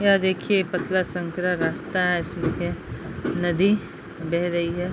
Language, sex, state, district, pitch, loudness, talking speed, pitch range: Hindi, female, Bihar, Sitamarhi, 180 Hz, -24 LUFS, 145 wpm, 170-185 Hz